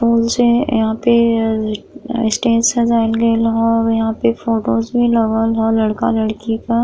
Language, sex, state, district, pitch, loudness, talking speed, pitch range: Bhojpuri, female, Uttar Pradesh, Gorakhpur, 230 Hz, -15 LUFS, 160 wpm, 225-235 Hz